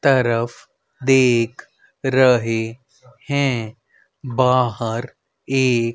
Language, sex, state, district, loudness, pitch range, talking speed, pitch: Hindi, male, Haryana, Rohtak, -19 LUFS, 115-135 Hz, 60 wpm, 125 Hz